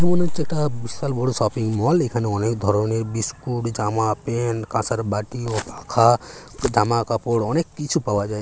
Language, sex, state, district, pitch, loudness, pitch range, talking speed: Bengali, male, West Bengal, Paschim Medinipur, 115 Hz, -22 LUFS, 110-130 Hz, 150 wpm